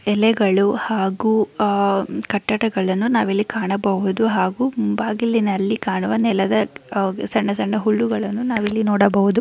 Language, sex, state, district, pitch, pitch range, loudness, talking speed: Kannada, female, Karnataka, Chamarajanagar, 210 Hz, 200-220 Hz, -19 LUFS, 95 wpm